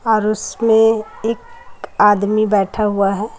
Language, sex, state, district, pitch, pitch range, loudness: Hindi, female, Chhattisgarh, Raipur, 215 Hz, 210-225 Hz, -16 LUFS